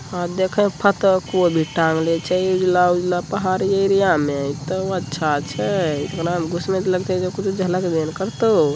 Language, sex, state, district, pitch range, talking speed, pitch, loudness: Hindi, male, Bihar, Begusarai, 165-190 Hz, 155 wpm, 180 Hz, -20 LUFS